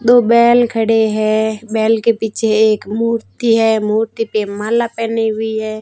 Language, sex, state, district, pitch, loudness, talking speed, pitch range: Hindi, female, Rajasthan, Barmer, 225 Hz, -15 LUFS, 165 wpm, 215-230 Hz